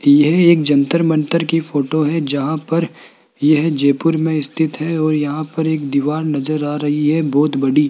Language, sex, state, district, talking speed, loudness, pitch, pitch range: Hindi, male, Rajasthan, Jaipur, 190 wpm, -16 LUFS, 155 Hz, 145-160 Hz